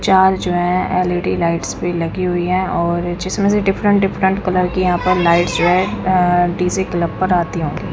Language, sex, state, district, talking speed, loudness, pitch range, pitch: Hindi, female, Punjab, Kapurthala, 195 wpm, -16 LUFS, 175-185 Hz, 180 Hz